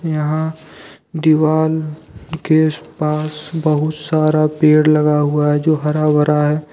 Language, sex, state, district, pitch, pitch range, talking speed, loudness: Hindi, male, Jharkhand, Deoghar, 155 Hz, 150-155 Hz, 125 wpm, -16 LUFS